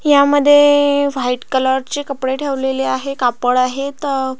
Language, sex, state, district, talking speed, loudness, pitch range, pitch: Marathi, female, Maharashtra, Pune, 125 wpm, -15 LUFS, 260-285 Hz, 270 Hz